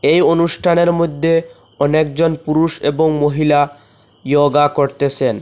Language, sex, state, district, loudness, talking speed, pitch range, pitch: Bengali, male, Assam, Hailakandi, -15 LUFS, 100 wpm, 145-165 Hz, 155 Hz